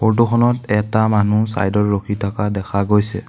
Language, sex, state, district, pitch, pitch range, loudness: Assamese, male, Assam, Sonitpur, 105 Hz, 105-110 Hz, -17 LUFS